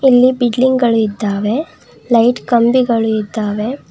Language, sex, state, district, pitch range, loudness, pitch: Kannada, female, Karnataka, Bangalore, 220-255 Hz, -14 LUFS, 235 Hz